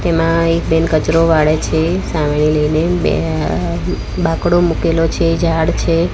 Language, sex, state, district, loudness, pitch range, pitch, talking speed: Gujarati, female, Gujarat, Gandhinagar, -15 LUFS, 160-165 Hz, 165 Hz, 135 wpm